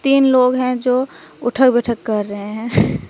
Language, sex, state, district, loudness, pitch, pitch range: Hindi, female, Jharkhand, Deoghar, -17 LUFS, 250 Hz, 230-260 Hz